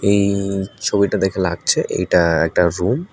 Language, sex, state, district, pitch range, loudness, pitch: Bengali, male, Tripura, West Tripura, 90-100 Hz, -18 LUFS, 100 Hz